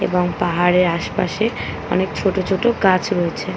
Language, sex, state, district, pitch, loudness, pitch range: Bengali, female, West Bengal, Paschim Medinipur, 185 Hz, -19 LUFS, 175-195 Hz